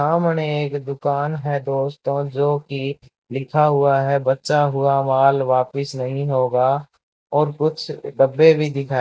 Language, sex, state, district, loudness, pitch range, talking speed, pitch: Hindi, male, Rajasthan, Bikaner, -19 LUFS, 135-145 Hz, 140 wpm, 140 Hz